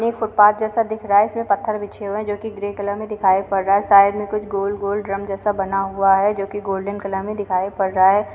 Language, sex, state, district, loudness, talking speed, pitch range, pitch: Hindi, female, Uttar Pradesh, Varanasi, -19 LUFS, 280 wpm, 195-210 Hz, 200 Hz